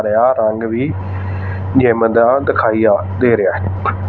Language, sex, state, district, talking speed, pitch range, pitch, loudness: Punjabi, male, Punjab, Fazilka, 145 wpm, 95-115 Hz, 105 Hz, -15 LUFS